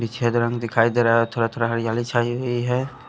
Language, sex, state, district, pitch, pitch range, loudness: Hindi, male, Punjab, Kapurthala, 120 Hz, 115-120 Hz, -21 LUFS